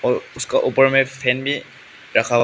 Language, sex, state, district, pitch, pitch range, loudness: Hindi, male, Meghalaya, West Garo Hills, 135 Hz, 125-135 Hz, -19 LUFS